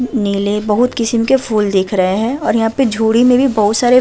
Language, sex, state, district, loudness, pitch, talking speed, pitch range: Hindi, female, Uttar Pradesh, Budaun, -14 LUFS, 225 Hz, 255 wpm, 210-250 Hz